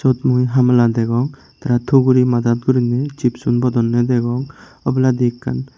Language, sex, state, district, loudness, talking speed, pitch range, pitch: Chakma, male, Tripura, Unakoti, -16 LUFS, 135 wpm, 120-130 Hz, 125 Hz